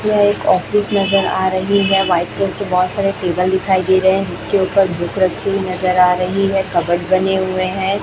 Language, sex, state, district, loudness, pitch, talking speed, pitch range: Hindi, female, Chhattisgarh, Raipur, -16 LUFS, 190 Hz, 215 wpm, 185-195 Hz